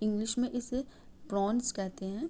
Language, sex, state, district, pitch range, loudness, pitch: Hindi, female, Uttar Pradesh, Gorakhpur, 200-245 Hz, -34 LUFS, 215 Hz